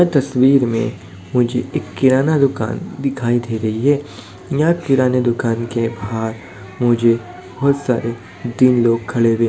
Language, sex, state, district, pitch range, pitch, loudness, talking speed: Hindi, male, Bihar, Madhepura, 115-130 Hz, 120 Hz, -17 LUFS, 150 wpm